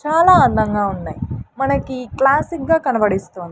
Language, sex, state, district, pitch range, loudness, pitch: Telugu, female, Andhra Pradesh, Sri Satya Sai, 195-295 Hz, -17 LUFS, 255 Hz